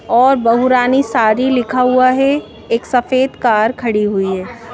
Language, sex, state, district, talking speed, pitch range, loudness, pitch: Hindi, female, Madhya Pradesh, Bhopal, 165 wpm, 225-255 Hz, -14 LUFS, 245 Hz